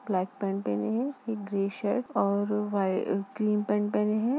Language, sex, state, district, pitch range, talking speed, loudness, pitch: Hindi, female, Uttar Pradesh, Jalaun, 195-215 Hz, 165 wpm, -29 LUFS, 205 Hz